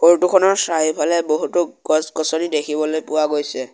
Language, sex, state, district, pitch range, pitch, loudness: Assamese, male, Assam, Sonitpur, 155-170 Hz, 155 Hz, -18 LUFS